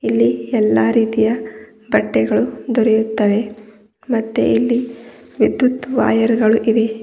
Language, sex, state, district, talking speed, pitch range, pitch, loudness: Kannada, female, Karnataka, Bidar, 95 wpm, 215-230 Hz, 220 Hz, -16 LUFS